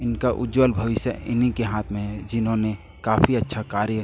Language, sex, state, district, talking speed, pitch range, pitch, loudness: Hindi, male, Chhattisgarh, Raipur, 180 wpm, 105-120 Hz, 115 Hz, -23 LUFS